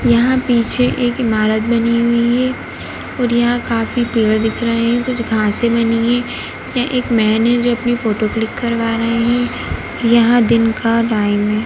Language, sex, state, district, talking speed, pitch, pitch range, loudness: Hindi, female, Bihar, Gaya, 175 wpm, 235 Hz, 225-240 Hz, -15 LUFS